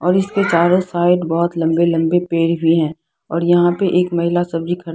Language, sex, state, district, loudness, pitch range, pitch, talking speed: Hindi, female, Bihar, Patna, -16 LUFS, 165-175 Hz, 170 Hz, 205 wpm